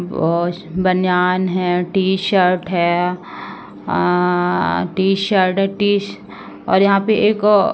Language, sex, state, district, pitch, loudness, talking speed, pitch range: Hindi, female, Uttar Pradesh, Ghazipur, 185 Hz, -16 LUFS, 130 wpm, 180-195 Hz